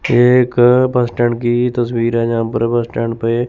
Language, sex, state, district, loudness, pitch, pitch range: Hindi, male, Chandigarh, Chandigarh, -14 LUFS, 120 Hz, 115-125 Hz